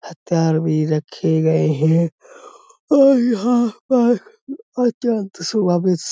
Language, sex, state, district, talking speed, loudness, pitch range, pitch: Hindi, male, Uttar Pradesh, Budaun, 120 wpm, -18 LUFS, 160-240 Hz, 190 Hz